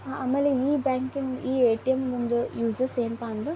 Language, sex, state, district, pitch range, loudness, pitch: Kannada, female, Karnataka, Belgaum, 240-270 Hz, -26 LUFS, 260 Hz